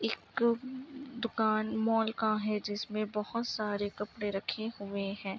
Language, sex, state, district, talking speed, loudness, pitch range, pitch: Hindi, female, Uttar Pradesh, Ghazipur, 135 wpm, -33 LUFS, 205-230 Hz, 215 Hz